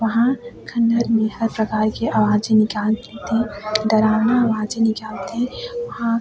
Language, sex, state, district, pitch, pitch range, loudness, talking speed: Chhattisgarhi, female, Chhattisgarh, Sarguja, 225 Hz, 215-230 Hz, -20 LUFS, 135 wpm